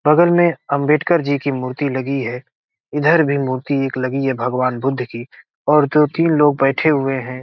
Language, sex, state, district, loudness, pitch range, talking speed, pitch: Hindi, male, Bihar, Gopalganj, -17 LUFS, 130-150 Hz, 195 wpm, 140 Hz